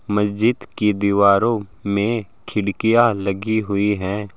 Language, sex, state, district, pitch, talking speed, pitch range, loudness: Hindi, male, Uttar Pradesh, Saharanpur, 105 Hz, 110 wpm, 100-110 Hz, -19 LUFS